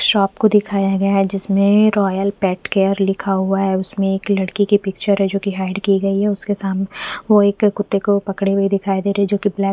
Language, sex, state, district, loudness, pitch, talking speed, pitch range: Hindi, female, Punjab, Fazilka, -17 LUFS, 195 Hz, 245 wpm, 195-205 Hz